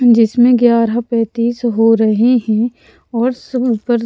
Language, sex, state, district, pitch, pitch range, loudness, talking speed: Hindi, female, Punjab, Pathankot, 235 Hz, 225-245 Hz, -14 LUFS, 150 wpm